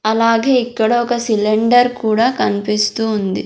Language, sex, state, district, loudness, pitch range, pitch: Telugu, female, Andhra Pradesh, Sri Satya Sai, -15 LUFS, 215-240 Hz, 225 Hz